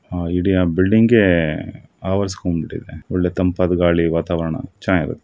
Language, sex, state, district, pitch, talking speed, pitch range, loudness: Kannada, male, Karnataka, Chamarajanagar, 90 Hz, 90 wpm, 85-95 Hz, -18 LUFS